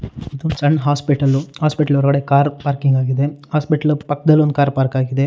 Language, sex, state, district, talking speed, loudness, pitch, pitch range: Kannada, male, Karnataka, Shimoga, 160 wpm, -17 LUFS, 145 Hz, 140-150 Hz